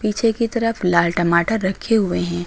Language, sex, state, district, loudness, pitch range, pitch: Hindi, female, Uttar Pradesh, Lucknow, -19 LUFS, 170-225 Hz, 195 Hz